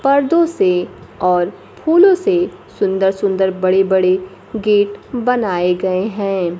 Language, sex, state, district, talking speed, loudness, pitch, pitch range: Hindi, female, Bihar, Kaimur, 120 wpm, -16 LUFS, 200 Hz, 185-280 Hz